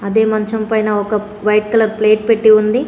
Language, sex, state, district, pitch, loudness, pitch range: Telugu, female, Telangana, Komaram Bheem, 215 Hz, -14 LUFS, 210-220 Hz